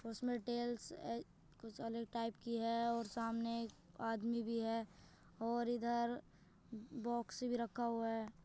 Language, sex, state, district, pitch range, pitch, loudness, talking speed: Hindi, female, Uttar Pradesh, Jyotiba Phule Nagar, 225-235 Hz, 230 Hz, -42 LUFS, 150 wpm